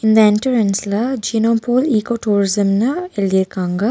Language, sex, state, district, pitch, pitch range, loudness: Tamil, female, Tamil Nadu, Nilgiris, 220 Hz, 200-235 Hz, -16 LUFS